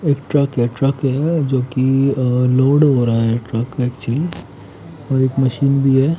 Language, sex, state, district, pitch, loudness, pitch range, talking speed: Hindi, male, Haryana, Charkhi Dadri, 130 Hz, -17 LUFS, 125-140 Hz, 175 wpm